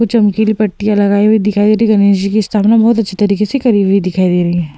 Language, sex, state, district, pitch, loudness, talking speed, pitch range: Hindi, female, Uttar Pradesh, Hamirpur, 205 Hz, -12 LUFS, 290 wpm, 200-220 Hz